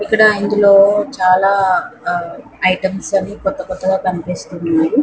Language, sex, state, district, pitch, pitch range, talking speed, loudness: Telugu, female, Andhra Pradesh, Anantapur, 195 Hz, 185-205 Hz, 105 wpm, -15 LUFS